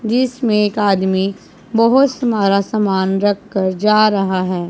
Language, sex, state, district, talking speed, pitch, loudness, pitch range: Hindi, male, Punjab, Pathankot, 130 wpm, 205 Hz, -16 LUFS, 190-220 Hz